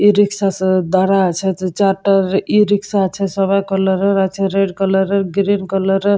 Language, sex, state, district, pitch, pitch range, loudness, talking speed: Bengali, female, West Bengal, Jalpaiguri, 195 Hz, 190-200 Hz, -15 LUFS, 185 wpm